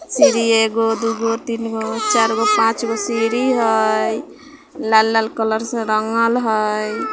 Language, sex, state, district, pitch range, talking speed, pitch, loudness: Bajjika, female, Bihar, Vaishali, 220-235 Hz, 150 wpm, 225 Hz, -17 LUFS